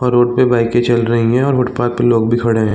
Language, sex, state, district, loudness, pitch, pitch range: Hindi, male, Chhattisgarh, Bilaspur, -14 LUFS, 120 Hz, 115-125 Hz